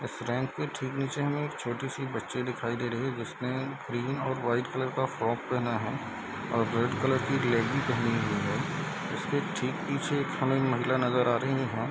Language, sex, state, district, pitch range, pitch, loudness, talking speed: Hindi, male, Bihar, East Champaran, 120-135 Hz, 125 Hz, -30 LUFS, 215 wpm